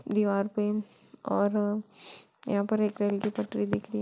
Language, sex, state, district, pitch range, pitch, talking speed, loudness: Hindi, female, Bihar, Saran, 200-210 Hz, 205 Hz, 165 wpm, -29 LUFS